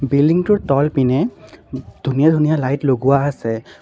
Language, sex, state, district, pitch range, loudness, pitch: Assamese, male, Assam, Sonitpur, 135-155 Hz, -17 LUFS, 140 Hz